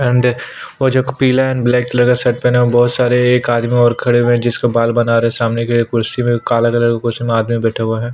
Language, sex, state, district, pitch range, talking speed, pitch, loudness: Hindi, male, Chhattisgarh, Sukma, 115-125 Hz, 260 wpm, 120 Hz, -14 LUFS